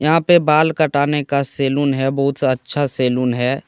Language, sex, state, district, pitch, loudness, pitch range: Hindi, male, Jharkhand, Deoghar, 140 Hz, -17 LUFS, 130-150 Hz